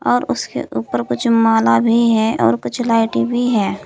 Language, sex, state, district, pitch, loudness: Hindi, female, Uttar Pradesh, Saharanpur, 220 Hz, -16 LUFS